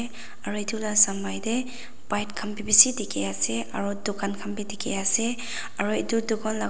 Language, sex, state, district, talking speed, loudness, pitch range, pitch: Nagamese, female, Nagaland, Dimapur, 190 wpm, -24 LUFS, 200-230 Hz, 210 Hz